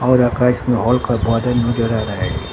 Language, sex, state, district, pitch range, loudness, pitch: Hindi, male, Bihar, Katihar, 115-125 Hz, -17 LUFS, 120 Hz